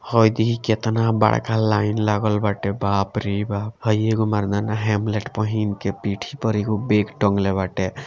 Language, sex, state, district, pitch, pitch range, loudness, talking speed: Bhojpuri, male, Bihar, Gopalganj, 105 Hz, 100-110 Hz, -21 LUFS, 165 wpm